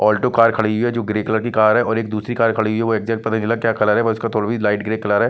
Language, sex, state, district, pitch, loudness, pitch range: Hindi, male, Chandigarh, Chandigarh, 110 Hz, -18 LUFS, 105-115 Hz